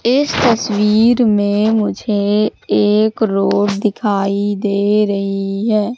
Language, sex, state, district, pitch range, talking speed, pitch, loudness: Hindi, female, Madhya Pradesh, Katni, 200-220 Hz, 100 wpm, 210 Hz, -15 LUFS